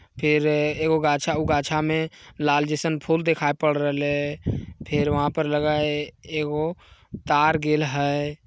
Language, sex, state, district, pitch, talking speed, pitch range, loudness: Magahi, male, Bihar, Jamui, 150 Hz, 150 wpm, 145-155 Hz, -23 LUFS